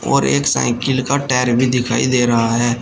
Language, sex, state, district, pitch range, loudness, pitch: Hindi, male, Uttar Pradesh, Shamli, 120-125 Hz, -16 LUFS, 120 Hz